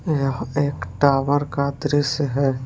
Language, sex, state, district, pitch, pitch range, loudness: Hindi, male, Jharkhand, Palamu, 140 Hz, 135-145 Hz, -21 LUFS